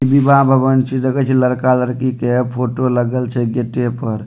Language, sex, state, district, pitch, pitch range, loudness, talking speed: Maithili, male, Bihar, Supaul, 125 Hz, 125-130 Hz, -15 LUFS, 185 wpm